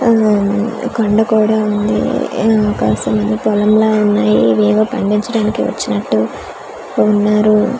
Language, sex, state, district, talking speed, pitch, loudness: Telugu, female, Andhra Pradesh, Manyam, 125 wpm, 210 Hz, -14 LUFS